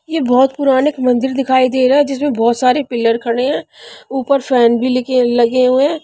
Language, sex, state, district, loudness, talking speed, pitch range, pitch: Hindi, female, Punjab, Pathankot, -14 LUFS, 220 wpm, 250-275 Hz, 255 Hz